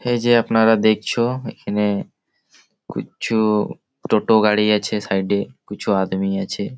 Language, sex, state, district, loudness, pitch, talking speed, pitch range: Bengali, male, West Bengal, Malda, -19 LUFS, 105 Hz, 115 wpm, 100-110 Hz